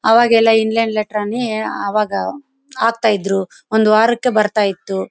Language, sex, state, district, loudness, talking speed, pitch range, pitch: Kannada, female, Karnataka, Bellary, -16 LUFS, 105 wpm, 210-230 Hz, 220 Hz